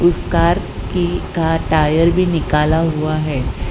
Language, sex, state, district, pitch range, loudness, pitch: Hindi, female, Gujarat, Valsad, 150-170 Hz, -17 LUFS, 160 Hz